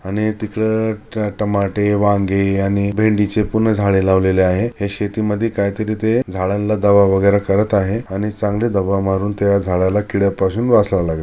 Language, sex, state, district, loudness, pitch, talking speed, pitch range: Marathi, male, Maharashtra, Chandrapur, -17 LUFS, 100 Hz, 150 wpm, 100-110 Hz